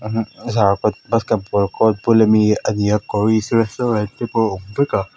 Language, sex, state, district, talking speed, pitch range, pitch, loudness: Mizo, female, Mizoram, Aizawl, 160 wpm, 105-115 Hz, 110 Hz, -18 LUFS